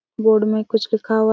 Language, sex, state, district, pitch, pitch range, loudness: Hindi, female, Chhattisgarh, Raigarh, 220 Hz, 215-220 Hz, -18 LUFS